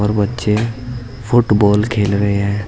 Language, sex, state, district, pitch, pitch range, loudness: Hindi, male, Uttar Pradesh, Saharanpur, 105 Hz, 105-120 Hz, -15 LUFS